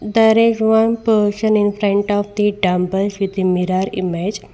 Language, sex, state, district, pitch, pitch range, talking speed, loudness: English, female, Karnataka, Bangalore, 205 Hz, 190-220 Hz, 170 wpm, -16 LUFS